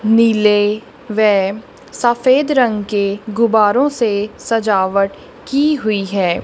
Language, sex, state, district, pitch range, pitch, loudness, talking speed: Hindi, female, Punjab, Kapurthala, 205-240 Hz, 215 Hz, -15 LUFS, 100 wpm